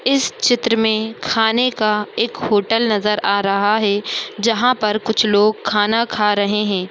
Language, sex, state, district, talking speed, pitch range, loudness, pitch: Hindi, male, Bihar, Madhepura, 165 wpm, 210-230 Hz, -17 LUFS, 215 Hz